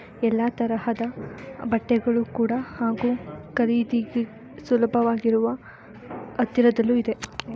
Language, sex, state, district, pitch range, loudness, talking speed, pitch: Kannada, female, Karnataka, Shimoga, 230-240 Hz, -24 LUFS, 70 wpm, 235 Hz